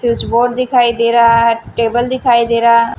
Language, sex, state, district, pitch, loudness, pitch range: Hindi, female, Maharashtra, Washim, 235 Hz, -12 LUFS, 230-240 Hz